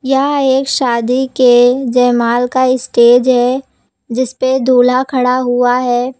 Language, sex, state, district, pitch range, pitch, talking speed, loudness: Hindi, female, Uttar Pradesh, Lucknow, 245-260 Hz, 255 Hz, 125 wpm, -12 LUFS